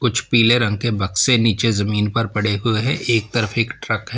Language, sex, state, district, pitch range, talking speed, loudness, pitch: Hindi, male, Uttar Pradesh, Lalitpur, 105-120 Hz, 230 wpm, -18 LUFS, 115 Hz